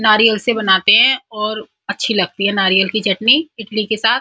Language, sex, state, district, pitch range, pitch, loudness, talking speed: Hindi, female, Uttar Pradesh, Muzaffarnagar, 200-225 Hz, 215 Hz, -14 LUFS, 215 wpm